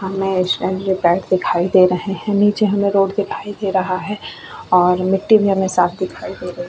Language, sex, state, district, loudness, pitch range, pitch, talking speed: Hindi, female, Goa, North and South Goa, -17 LUFS, 180-200 Hz, 190 Hz, 190 wpm